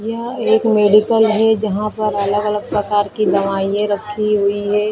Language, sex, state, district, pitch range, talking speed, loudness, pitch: Hindi, female, Maharashtra, Mumbai Suburban, 205-215 Hz, 170 wpm, -16 LUFS, 210 Hz